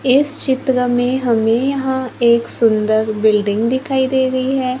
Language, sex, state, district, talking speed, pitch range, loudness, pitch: Hindi, female, Maharashtra, Gondia, 150 wpm, 230-265 Hz, -16 LUFS, 255 Hz